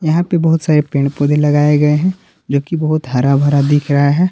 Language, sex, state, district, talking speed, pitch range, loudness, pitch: Hindi, male, Jharkhand, Palamu, 225 wpm, 145-160 Hz, -14 LUFS, 150 Hz